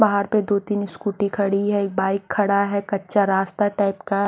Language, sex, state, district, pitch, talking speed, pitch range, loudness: Hindi, female, Odisha, Khordha, 200 Hz, 195 wpm, 200-205 Hz, -21 LUFS